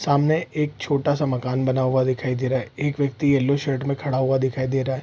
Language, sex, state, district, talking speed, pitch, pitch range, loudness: Hindi, male, Bihar, Saharsa, 265 wpm, 135 Hz, 130-145 Hz, -22 LUFS